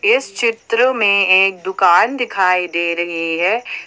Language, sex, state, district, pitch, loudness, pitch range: Hindi, female, Jharkhand, Ranchi, 195 Hz, -15 LUFS, 180-230 Hz